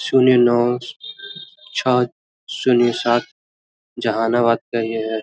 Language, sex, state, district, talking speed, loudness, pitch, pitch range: Hindi, male, Bihar, Araria, 105 wpm, -18 LUFS, 120 Hz, 115-130 Hz